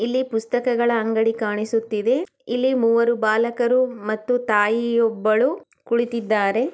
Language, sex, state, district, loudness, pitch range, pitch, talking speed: Kannada, female, Karnataka, Chamarajanagar, -21 LUFS, 220-245 Hz, 230 Hz, 100 wpm